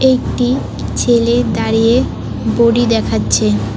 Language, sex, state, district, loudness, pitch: Bengali, female, West Bengal, Alipurduar, -14 LUFS, 230 Hz